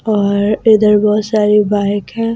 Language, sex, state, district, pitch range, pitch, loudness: Hindi, female, Delhi, New Delhi, 205-215 Hz, 210 Hz, -13 LUFS